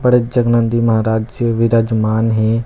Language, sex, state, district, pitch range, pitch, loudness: Chhattisgarhi, male, Chhattisgarh, Rajnandgaon, 110-115 Hz, 115 Hz, -15 LUFS